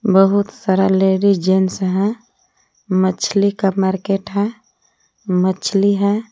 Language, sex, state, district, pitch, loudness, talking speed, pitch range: Hindi, female, Jharkhand, Palamu, 195 Hz, -17 LUFS, 105 wpm, 190-205 Hz